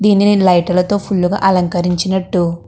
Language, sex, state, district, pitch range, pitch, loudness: Telugu, female, Andhra Pradesh, Krishna, 180-200 Hz, 185 Hz, -14 LUFS